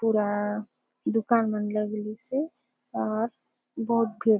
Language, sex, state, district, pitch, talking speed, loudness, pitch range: Halbi, female, Chhattisgarh, Bastar, 220 Hz, 110 wpm, -28 LUFS, 210-230 Hz